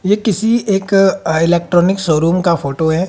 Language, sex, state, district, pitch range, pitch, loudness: Hindi, female, Haryana, Jhajjar, 165-195 Hz, 180 Hz, -14 LUFS